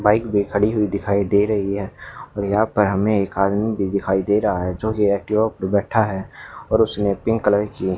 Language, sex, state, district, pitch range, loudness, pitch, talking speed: Hindi, male, Haryana, Charkhi Dadri, 100-105 Hz, -20 LUFS, 100 Hz, 235 wpm